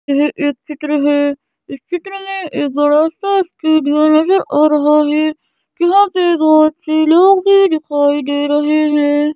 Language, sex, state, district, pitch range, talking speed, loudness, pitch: Hindi, female, Madhya Pradesh, Bhopal, 290-345 Hz, 160 wpm, -13 LUFS, 305 Hz